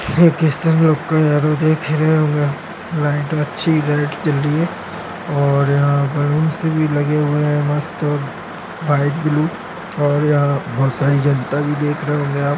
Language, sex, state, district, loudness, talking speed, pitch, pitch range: Hindi, male, Maharashtra, Solapur, -17 LUFS, 155 wpm, 150 Hz, 145-155 Hz